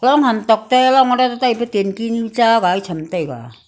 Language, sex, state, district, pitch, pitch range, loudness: Wancho, female, Arunachal Pradesh, Longding, 230 Hz, 190-250 Hz, -16 LUFS